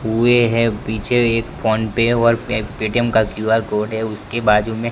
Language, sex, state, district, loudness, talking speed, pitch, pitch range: Hindi, male, Gujarat, Gandhinagar, -17 LUFS, 195 wpm, 110 Hz, 110-115 Hz